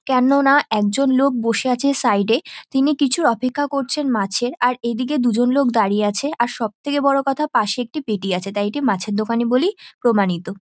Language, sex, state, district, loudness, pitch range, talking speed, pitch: Bengali, female, West Bengal, North 24 Parganas, -19 LUFS, 215-275 Hz, 185 wpm, 245 Hz